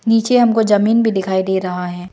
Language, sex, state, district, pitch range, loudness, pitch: Hindi, female, Arunachal Pradesh, Lower Dibang Valley, 190-225 Hz, -15 LUFS, 205 Hz